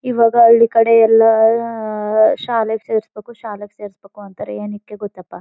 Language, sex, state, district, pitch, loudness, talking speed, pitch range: Kannada, female, Karnataka, Mysore, 220 Hz, -14 LUFS, 155 wpm, 210-230 Hz